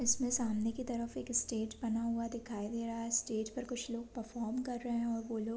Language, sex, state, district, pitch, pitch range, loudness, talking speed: Hindi, female, Bihar, Sitamarhi, 235 Hz, 225-240 Hz, -37 LUFS, 250 wpm